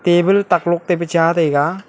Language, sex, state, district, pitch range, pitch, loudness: Wancho, male, Arunachal Pradesh, Longding, 165-175 Hz, 170 Hz, -16 LUFS